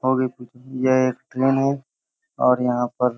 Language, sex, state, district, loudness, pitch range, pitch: Hindi, male, Uttar Pradesh, Hamirpur, -21 LUFS, 125-135 Hz, 130 Hz